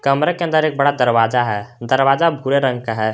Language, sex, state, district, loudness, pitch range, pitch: Hindi, male, Jharkhand, Garhwa, -17 LUFS, 120-145 Hz, 135 Hz